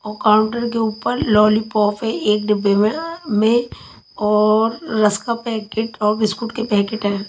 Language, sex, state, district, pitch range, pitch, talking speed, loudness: Hindi, female, Haryana, Charkhi Dadri, 210-230 Hz, 215 Hz, 155 wpm, -18 LUFS